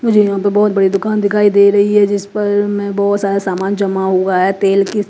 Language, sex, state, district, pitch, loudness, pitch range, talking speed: Hindi, female, Punjab, Kapurthala, 200 Hz, -13 LUFS, 195-205 Hz, 235 wpm